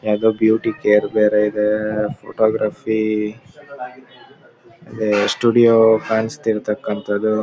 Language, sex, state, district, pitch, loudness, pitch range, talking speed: Kannada, male, Karnataka, Mysore, 110 Hz, -17 LUFS, 105-110 Hz, 75 wpm